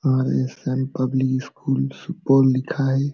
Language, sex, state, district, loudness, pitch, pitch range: Hindi, male, Bihar, Supaul, -21 LUFS, 130 Hz, 125-135 Hz